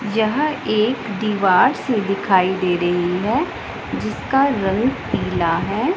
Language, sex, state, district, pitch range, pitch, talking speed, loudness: Hindi, female, Punjab, Pathankot, 190-260 Hz, 215 Hz, 120 wpm, -19 LUFS